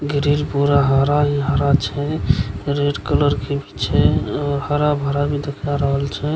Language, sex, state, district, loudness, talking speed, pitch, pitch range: Maithili, male, Bihar, Begusarai, -19 LUFS, 150 wpm, 145 Hz, 140-145 Hz